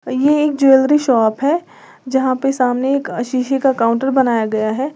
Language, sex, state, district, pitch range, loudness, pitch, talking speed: Hindi, female, Uttar Pradesh, Lalitpur, 240-275 Hz, -15 LUFS, 265 Hz, 180 wpm